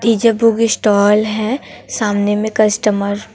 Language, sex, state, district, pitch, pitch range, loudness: Hindi, female, Chhattisgarh, Raipur, 215 Hz, 205-225 Hz, -15 LUFS